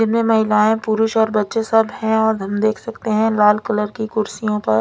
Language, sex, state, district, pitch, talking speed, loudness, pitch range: Hindi, female, Punjab, Fazilka, 220 Hz, 200 wpm, -17 LUFS, 210-225 Hz